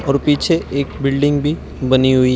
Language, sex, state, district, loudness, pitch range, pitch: Hindi, male, Uttar Pradesh, Shamli, -16 LUFS, 130-145 Hz, 140 Hz